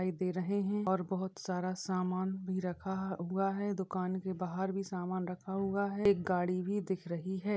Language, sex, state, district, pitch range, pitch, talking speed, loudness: Hindi, female, Uttar Pradesh, Jyotiba Phule Nagar, 185-195 Hz, 190 Hz, 220 wpm, -35 LUFS